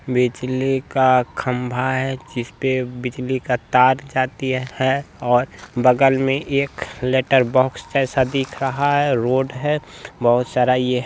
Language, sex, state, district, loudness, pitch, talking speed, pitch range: Bhojpuri, male, Bihar, Saran, -19 LUFS, 130 Hz, 140 wpm, 125-135 Hz